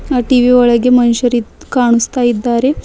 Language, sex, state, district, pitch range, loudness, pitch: Kannada, female, Karnataka, Bidar, 240-250 Hz, -12 LUFS, 245 Hz